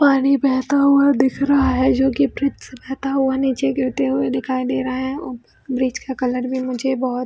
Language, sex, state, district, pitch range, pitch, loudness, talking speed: Hindi, female, Chhattisgarh, Bilaspur, 255-275 Hz, 265 Hz, -19 LUFS, 205 wpm